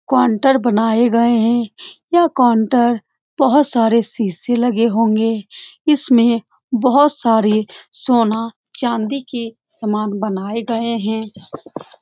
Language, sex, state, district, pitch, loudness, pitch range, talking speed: Hindi, female, Bihar, Saran, 230 Hz, -16 LUFS, 220-245 Hz, 105 wpm